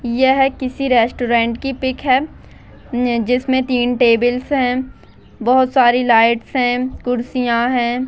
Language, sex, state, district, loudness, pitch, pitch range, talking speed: Hindi, female, Bihar, Bhagalpur, -16 LUFS, 250 Hz, 240-260 Hz, 120 wpm